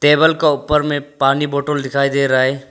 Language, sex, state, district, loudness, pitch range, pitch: Hindi, male, Arunachal Pradesh, Longding, -16 LUFS, 140-150 Hz, 145 Hz